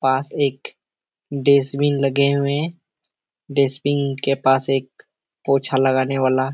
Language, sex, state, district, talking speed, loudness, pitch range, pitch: Hindi, male, Bihar, Kishanganj, 120 wpm, -19 LUFS, 135-140 Hz, 135 Hz